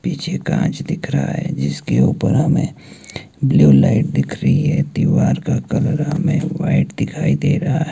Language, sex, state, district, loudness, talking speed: Hindi, male, Himachal Pradesh, Shimla, -17 LUFS, 165 wpm